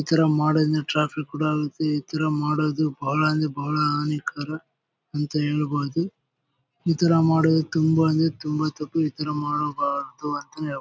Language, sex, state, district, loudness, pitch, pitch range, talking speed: Kannada, male, Karnataka, Bellary, -24 LUFS, 150 Hz, 145-155 Hz, 155 wpm